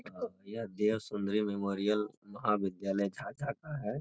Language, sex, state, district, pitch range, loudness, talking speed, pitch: Hindi, male, Bihar, Jamui, 100-110 Hz, -35 LUFS, 135 wpm, 105 Hz